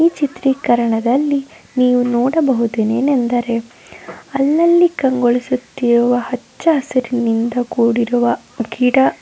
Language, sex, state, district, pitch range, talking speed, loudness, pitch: Kannada, female, Karnataka, Dharwad, 240-270 Hz, 65 wpm, -16 LUFS, 245 Hz